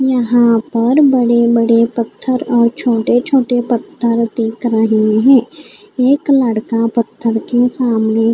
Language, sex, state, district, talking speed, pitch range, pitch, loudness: Hindi, female, Odisha, Khordha, 120 wpm, 230-250 Hz, 235 Hz, -13 LUFS